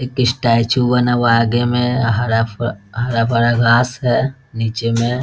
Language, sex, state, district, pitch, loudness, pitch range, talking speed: Hindi, male, Bihar, Muzaffarpur, 120 Hz, -16 LUFS, 115-125 Hz, 135 wpm